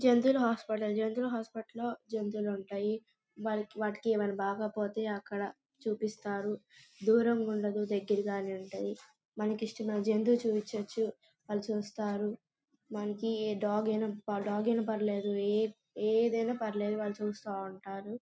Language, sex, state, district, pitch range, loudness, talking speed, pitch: Telugu, female, Andhra Pradesh, Guntur, 205-225 Hz, -34 LUFS, 120 wpm, 215 Hz